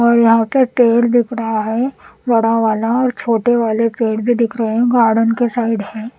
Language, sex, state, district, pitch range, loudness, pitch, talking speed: Hindi, female, Punjab, Pathankot, 225-240 Hz, -15 LUFS, 230 Hz, 205 wpm